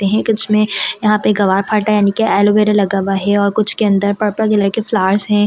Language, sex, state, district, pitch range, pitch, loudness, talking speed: Hindi, female, Delhi, New Delhi, 200-215 Hz, 210 Hz, -14 LUFS, 220 wpm